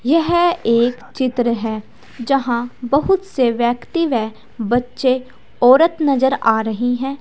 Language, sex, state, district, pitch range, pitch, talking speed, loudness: Hindi, female, Uttar Pradesh, Saharanpur, 235-275 Hz, 250 Hz, 125 wpm, -17 LUFS